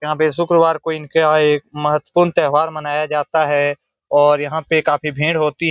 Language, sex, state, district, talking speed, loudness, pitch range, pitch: Hindi, male, Bihar, Saran, 200 wpm, -16 LUFS, 150-160 Hz, 155 Hz